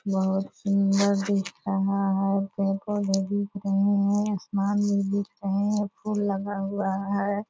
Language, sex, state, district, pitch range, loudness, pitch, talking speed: Hindi, female, Bihar, Purnia, 195-200 Hz, -26 LUFS, 200 Hz, 175 wpm